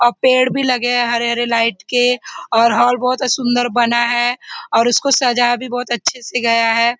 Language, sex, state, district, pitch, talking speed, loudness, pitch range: Hindi, female, Maharashtra, Nagpur, 245 Hz, 205 wpm, -15 LUFS, 235-250 Hz